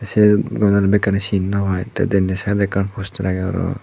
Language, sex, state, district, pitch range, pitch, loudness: Chakma, male, Tripura, Dhalai, 95-105 Hz, 100 Hz, -18 LUFS